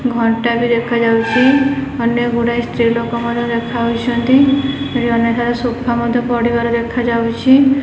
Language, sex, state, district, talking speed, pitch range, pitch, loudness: Odia, female, Odisha, Khordha, 120 wpm, 235-250 Hz, 235 Hz, -15 LUFS